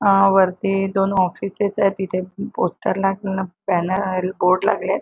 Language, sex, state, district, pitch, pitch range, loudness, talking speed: Marathi, female, Maharashtra, Chandrapur, 195 Hz, 185-195 Hz, -20 LUFS, 145 wpm